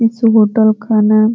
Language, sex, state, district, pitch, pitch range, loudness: Hindi, female, Uttar Pradesh, Ghazipur, 220 Hz, 215-225 Hz, -12 LUFS